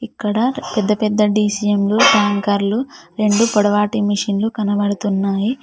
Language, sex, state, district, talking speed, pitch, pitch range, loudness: Telugu, female, Telangana, Mahabubabad, 105 wpm, 210 Hz, 205-215 Hz, -17 LUFS